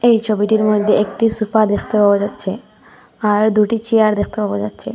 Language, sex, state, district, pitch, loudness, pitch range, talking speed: Bengali, female, Assam, Hailakandi, 215 Hz, -16 LUFS, 205-220 Hz, 170 wpm